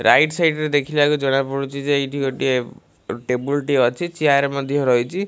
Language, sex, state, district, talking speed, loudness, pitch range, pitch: Odia, male, Odisha, Malkangiri, 160 wpm, -19 LUFS, 135-145 Hz, 140 Hz